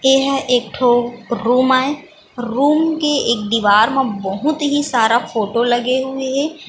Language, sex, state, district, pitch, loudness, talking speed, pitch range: Chhattisgarhi, female, Chhattisgarh, Bilaspur, 255 Hz, -16 LUFS, 160 wpm, 235-280 Hz